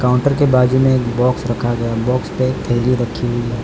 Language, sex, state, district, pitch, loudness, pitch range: Hindi, male, Gujarat, Valsad, 125 Hz, -16 LUFS, 120-130 Hz